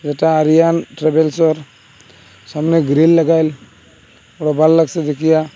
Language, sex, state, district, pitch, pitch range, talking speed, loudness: Bengali, male, Assam, Hailakandi, 155 Hz, 130-160 Hz, 110 wpm, -14 LUFS